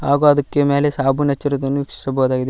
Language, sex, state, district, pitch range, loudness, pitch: Kannada, male, Karnataka, Koppal, 135-145 Hz, -18 LUFS, 140 Hz